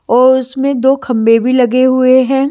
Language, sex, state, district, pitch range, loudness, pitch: Hindi, female, Haryana, Jhajjar, 250-265 Hz, -11 LUFS, 260 Hz